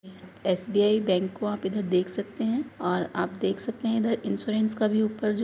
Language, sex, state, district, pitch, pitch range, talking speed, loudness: Hindi, female, Uttar Pradesh, Muzaffarnagar, 210 Hz, 190-225 Hz, 210 wpm, -27 LUFS